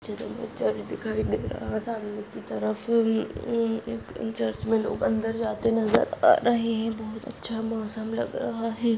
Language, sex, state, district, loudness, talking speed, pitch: Hindi, female, Goa, North and South Goa, -27 LUFS, 155 wpm, 225 Hz